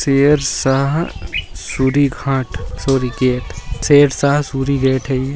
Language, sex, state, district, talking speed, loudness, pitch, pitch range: Magahi, male, Bihar, Jahanabad, 110 wpm, -16 LUFS, 135 Hz, 125-140 Hz